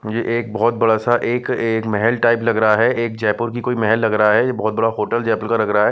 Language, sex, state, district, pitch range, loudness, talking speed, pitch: Hindi, male, Chandigarh, Chandigarh, 110-115 Hz, -17 LUFS, 275 wpm, 115 Hz